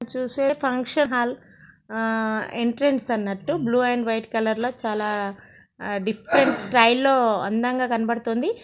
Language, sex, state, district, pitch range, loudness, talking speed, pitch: Telugu, female, Andhra Pradesh, Krishna, 220-250 Hz, -22 LUFS, 120 wpm, 235 Hz